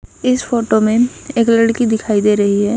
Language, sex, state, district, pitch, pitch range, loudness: Hindi, female, Punjab, Kapurthala, 230 Hz, 215-235 Hz, -14 LUFS